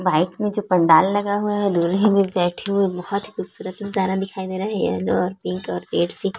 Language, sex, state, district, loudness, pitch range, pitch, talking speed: Hindi, female, Chhattisgarh, Korba, -21 LUFS, 175-205 Hz, 190 Hz, 245 wpm